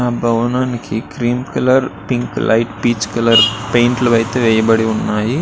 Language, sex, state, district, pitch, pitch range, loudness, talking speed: Telugu, male, Andhra Pradesh, Srikakulam, 120 Hz, 115-125 Hz, -15 LUFS, 145 wpm